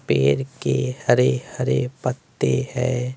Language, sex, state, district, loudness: Hindi, male, Bihar, West Champaran, -22 LUFS